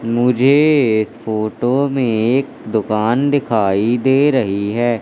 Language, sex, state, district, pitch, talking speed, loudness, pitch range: Hindi, male, Madhya Pradesh, Katni, 120 Hz, 120 wpm, -16 LUFS, 110-135 Hz